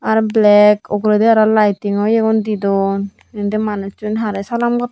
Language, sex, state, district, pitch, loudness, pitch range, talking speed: Chakma, female, Tripura, Unakoti, 210 Hz, -15 LUFS, 205-220 Hz, 185 wpm